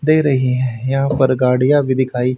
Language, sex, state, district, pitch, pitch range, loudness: Hindi, male, Haryana, Rohtak, 130 Hz, 125-140 Hz, -16 LUFS